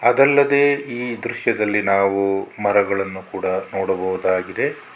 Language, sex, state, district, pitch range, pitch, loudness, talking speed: Kannada, male, Karnataka, Bangalore, 95-120 Hz, 100 Hz, -19 LUFS, 85 wpm